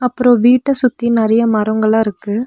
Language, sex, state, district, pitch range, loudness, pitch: Tamil, female, Tamil Nadu, Nilgiris, 220-250 Hz, -13 LUFS, 235 Hz